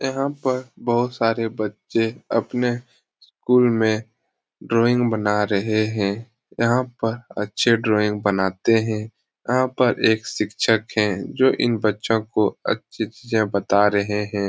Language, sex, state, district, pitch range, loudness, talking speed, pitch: Hindi, male, Bihar, Jahanabad, 105-120 Hz, -21 LUFS, 135 wpm, 110 Hz